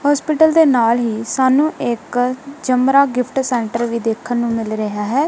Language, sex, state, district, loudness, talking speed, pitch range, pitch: Punjabi, female, Punjab, Kapurthala, -16 LUFS, 170 wpm, 230-280 Hz, 250 Hz